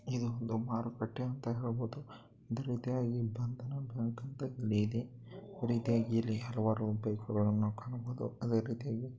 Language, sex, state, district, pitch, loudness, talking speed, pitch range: Kannada, male, Karnataka, Chamarajanagar, 115 Hz, -37 LUFS, 125 wpm, 115-125 Hz